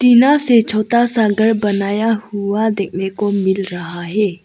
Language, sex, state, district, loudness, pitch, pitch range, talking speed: Hindi, female, Arunachal Pradesh, Lower Dibang Valley, -16 LUFS, 210 Hz, 195-225 Hz, 160 wpm